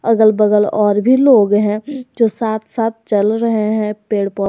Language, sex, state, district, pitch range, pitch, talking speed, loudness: Hindi, female, Jharkhand, Garhwa, 210-230 Hz, 215 Hz, 185 wpm, -15 LUFS